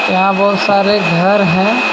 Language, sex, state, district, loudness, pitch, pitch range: Hindi, male, Jharkhand, Ranchi, -12 LUFS, 200 Hz, 190-205 Hz